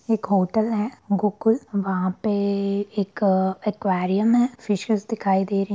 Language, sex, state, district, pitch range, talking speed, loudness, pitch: Hindi, female, Bihar, Sitamarhi, 195-220 Hz, 155 wpm, -23 LUFS, 200 Hz